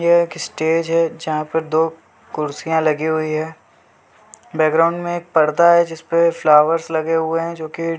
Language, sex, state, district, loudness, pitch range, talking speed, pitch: Hindi, male, Chhattisgarh, Bilaspur, -18 LUFS, 155-165 Hz, 180 wpm, 165 Hz